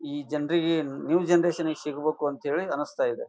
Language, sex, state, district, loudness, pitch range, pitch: Kannada, male, Karnataka, Bijapur, -27 LUFS, 150-175 Hz, 165 Hz